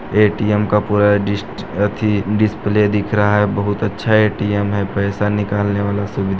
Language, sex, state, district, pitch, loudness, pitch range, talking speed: Hindi, male, Chhattisgarh, Balrampur, 105 Hz, -17 LUFS, 100-105 Hz, 150 wpm